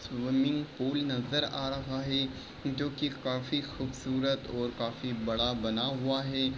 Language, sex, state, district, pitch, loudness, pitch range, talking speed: Hindi, male, Bihar, East Champaran, 135 Hz, -32 LUFS, 125-135 Hz, 145 wpm